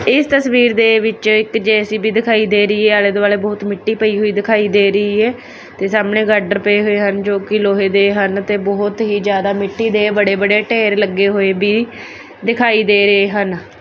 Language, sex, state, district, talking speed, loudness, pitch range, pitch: Punjabi, female, Punjab, Kapurthala, 205 wpm, -14 LUFS, 200-220 Hz, 205 Hz